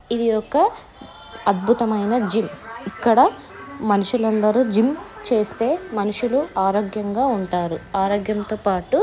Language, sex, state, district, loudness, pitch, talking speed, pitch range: Telugu, female, Andhra Pradesh, Anantapur, -20 LUFS, 215 Hz, 100 wpm, 205-240 Hz